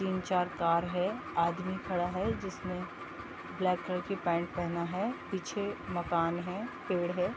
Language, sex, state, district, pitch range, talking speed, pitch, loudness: Hindi, female, Bihar, Gopalganj, 175-190 Hz, 145 wpm, 180 Hz, -34 LUFS